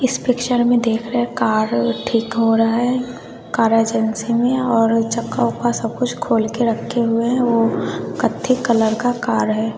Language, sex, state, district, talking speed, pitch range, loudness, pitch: Hindi, female, Bihar, West Champaran, 170 wpm, 225-245 Hz, -18 LUFS, 230 Hz